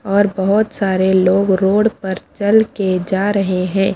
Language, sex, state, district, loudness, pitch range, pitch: Hindi, female, Bihar, Patna, -15 LUFS, 190-205 Hz, 195 Hz